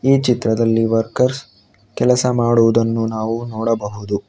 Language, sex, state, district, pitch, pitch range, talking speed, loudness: Kannada, male, Karnataka, Bangalore, 115 Hz, 110-120 Hz, 100 wpm, -17 LUFS